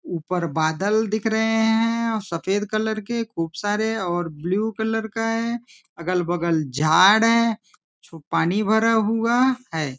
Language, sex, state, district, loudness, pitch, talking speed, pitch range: Hindi, male, Maharashtra, Nagpur, -22 LUFS, 215 Hz, 140 wpm, 175-225 Hz